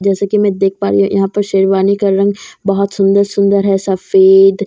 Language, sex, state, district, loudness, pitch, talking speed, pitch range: Hindi, female, Bihar, Katihar, -12 LUFS, 195 Hz, 245 wpm, 195-200 Hz